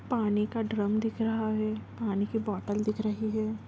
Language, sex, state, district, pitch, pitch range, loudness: Hindi, female, Andhra Pradesh, Anantapur, 215 Hz, 210-220 Hz, -30 LUFS